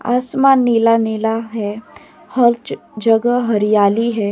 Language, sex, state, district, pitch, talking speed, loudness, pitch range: Hindi, female, Uttar Pradesh, Etah, 230 Hz, 110 wpm, -15 LUFS, 220-240 Hz